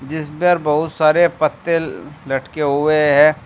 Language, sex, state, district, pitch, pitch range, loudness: Hindi, male, Uttar Pradesh, Shamli, 155 Hz, 145-160 Hz, -16 LUFS